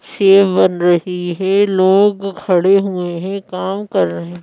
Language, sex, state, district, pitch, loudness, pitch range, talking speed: Hindi, female, Madhya Pradesh, Bhopal, 190 Hz, -14 LUFS, 175-195 Hz, 150 wpm